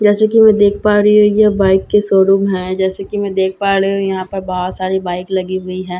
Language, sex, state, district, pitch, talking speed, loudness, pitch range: Hindi, female, Bihar, Katihar, 195 Hz, 310 wpm, -14 LUFS, 185-205 Hz